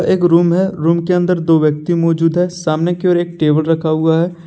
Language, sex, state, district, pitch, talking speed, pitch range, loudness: Hindi, male, Jharkhand, Deoghar, 170 Hz, 240 wpm, 160-175 Hz, -14 LUFS